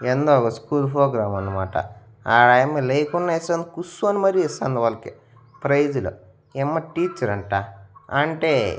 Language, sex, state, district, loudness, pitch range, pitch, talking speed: Telugu, male, Andhra Pradesh, Annamaya, -21 LUFS, 110-160 Hz, 135 Hz, 125 wpm